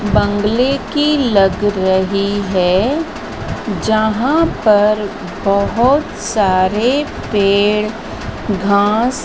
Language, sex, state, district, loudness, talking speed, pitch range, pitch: Hindi, female, Madhya Pradesh, Dhar, -15 LUFS, 70 wpm, 200-245 Hz, 210 Hz